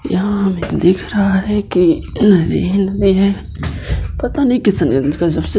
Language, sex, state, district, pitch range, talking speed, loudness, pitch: Hindi, male, Bihar, Kishanganj, 180-205 Hz, 140 wpm, -15 LUFS, 195 Hz